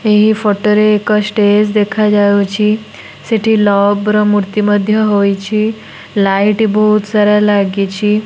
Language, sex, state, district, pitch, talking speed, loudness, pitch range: Odia, female, Odisha, Nuapada, 210 Hz, 125 wpm, -12 LUFS, 205-215 Hz